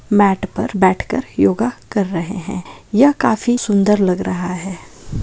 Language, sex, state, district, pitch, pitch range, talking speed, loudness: Maithili, female, Bihar, Darbhanga, 200 Hz, 185-220 Hz, 150 wpm, -17 LUFS